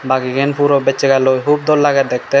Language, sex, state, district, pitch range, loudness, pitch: Chakma, male, Tripura, Dhalai, 130-145 Hz, -14 LUFS, 140 Hz